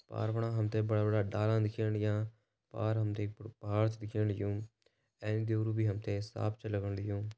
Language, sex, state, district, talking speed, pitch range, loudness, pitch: Garhwali, male, Uttarakhand, Uttarkashi, 185 wpm, 105-110 Hz, -35 LUFS, 110 Hz